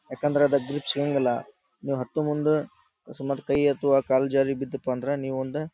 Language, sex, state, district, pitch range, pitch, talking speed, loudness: Kannada, male, Karnataka, Dharwad, 135-145 Hz, 140 Hz, 155 wpm, -26 LUFS